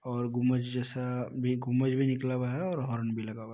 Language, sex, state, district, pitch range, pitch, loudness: Hindi, male, Bihar, Muzaffarpur, 120-130 Hz, 125 Hz, -31 LUFS